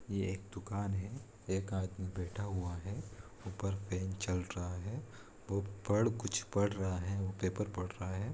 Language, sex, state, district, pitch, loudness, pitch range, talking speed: Hindi, male, Bihar, East Champaran, 95 Hz, -39 LUFS, 95-100 Hz, 170 wpm